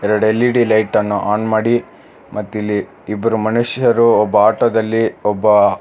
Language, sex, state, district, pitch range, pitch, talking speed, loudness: Kannada, male, Karnataka, Bangalore, 105-115 Hz, 110 Hz, 145 wpm, -15 LUFS